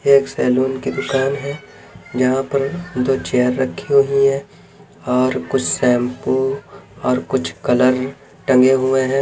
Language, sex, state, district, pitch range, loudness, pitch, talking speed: Hindi, male, Chhattisgarh, Bilaspur, 130-140 Hz, -18 LUFS, 130 Hz, 135 wpm